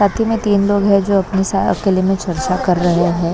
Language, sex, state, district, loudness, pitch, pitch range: Hindi, female, Maharashtra, Mumbai Suburban, -15 LUFS, 195 Hz, 180-200 Hz